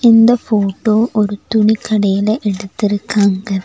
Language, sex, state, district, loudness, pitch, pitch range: Tamil, female, Tamil Nadu, Nilgiris, -14 LUFS, 210 Hz, 200-220 Hz